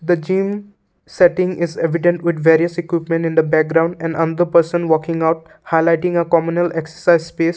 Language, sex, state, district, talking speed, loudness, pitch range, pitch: English, male, Assam, Kamrup Metropolitan, 165 wpm, -17 LUFS, 165-175 Hz, 170 Hz